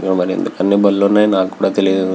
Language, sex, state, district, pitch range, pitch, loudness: Telugu, male, Andhra Pradesh, Visakhapatnam, 95-100 Hz, 95 Hz, -15 LUFS